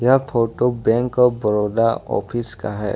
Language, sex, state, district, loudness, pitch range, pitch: Hindi, male, Jharkhand, Ranchi, -19 LUFS, 105-125 Hz, 115 Hz